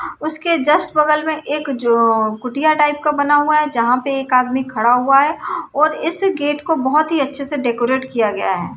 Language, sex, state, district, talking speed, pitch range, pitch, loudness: Hindi, female, Bihar, Saran, 200 wpm, 255-305 Hz, 290 Hz, -16 LUFS